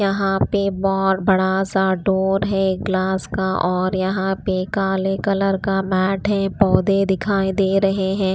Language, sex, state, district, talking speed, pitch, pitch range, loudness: Hindi, female, Punjab, Pathankot, 160 wpm, 195 Hz, 190-195 Hz, -19 LUFS